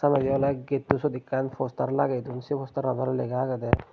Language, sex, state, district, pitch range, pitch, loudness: Chakma, male, Tripura, Unakoti, 125-140 Hz, 130 Hz, -27 LUFS